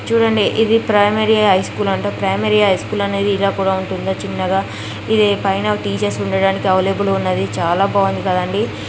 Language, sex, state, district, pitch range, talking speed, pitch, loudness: Telugu, female, Andhra Pradesh, Guntur, 185-205 Hz, 160 wpm, 195 Hz, -16 LUFS